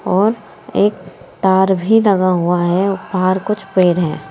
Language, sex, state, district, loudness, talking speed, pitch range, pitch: Hindi, female, Uttar Pradesh, Saharanpur, -15 LUFS, 155 wpm, 180-205 Hz, 190 Hz